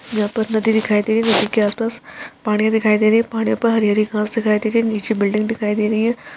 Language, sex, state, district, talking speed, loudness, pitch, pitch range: Hindi, female, Uttarakhand, Tehri Garhwal, 280 wpm, -17 LUFS, 220 Hz, 215-230 Hz